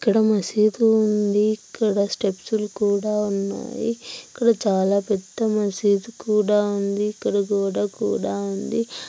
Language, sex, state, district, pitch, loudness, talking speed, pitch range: Telugu, female, Andhra Pradesh, Anantapur, 210 Hz, -22 LUFS, 110 wpm, 200-220 Hz